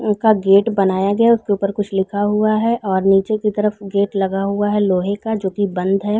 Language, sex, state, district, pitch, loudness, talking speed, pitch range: Hindi, female, Chhattisgarh, Balrampur, 200 Hz, -17 LUFS, 240 wpm, 195-210 Hz